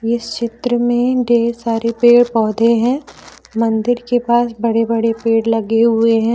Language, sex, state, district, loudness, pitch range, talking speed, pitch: Hindi, female, Jharkhand, Deoghar, -15 LUFS, 225-240 Hz, 160 wpm, 230 Hz